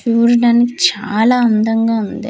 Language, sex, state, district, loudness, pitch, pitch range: Telugu, female, Andhra Pradesh, Manyam, -13 LUFS, 230 Hz, 225-240 Hz